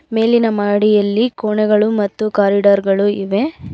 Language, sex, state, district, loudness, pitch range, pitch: Kannada, female, Karnataka, Bangalore, -15 LUFS, 200-225 Hz, 210 Hz